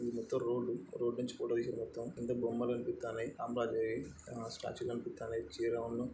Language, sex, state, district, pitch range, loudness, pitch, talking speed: Telugu, male, Andhra Pradesh, Srikakulam, 115-120 Hz, -39 LUFS, 120 Hz, 145 wpm